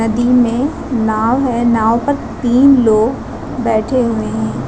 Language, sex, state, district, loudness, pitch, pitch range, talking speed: Hindi, female, Uttar Pradesh, Lucknow, -14 LUFS, 235 Hz, 220-250 Hz, 140 wpm